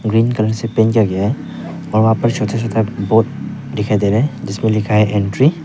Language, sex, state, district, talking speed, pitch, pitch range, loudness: Hindi, male, Arunachal Pradesh, Papum Pare, 235 wpm, 110 Hz, 105-115 Hz, -16 LUFS